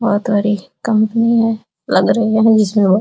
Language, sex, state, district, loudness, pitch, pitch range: Hindi, female, Uttar Pradesh, Deoria, -14 LUFS, 220 Hz, 205-225 Hz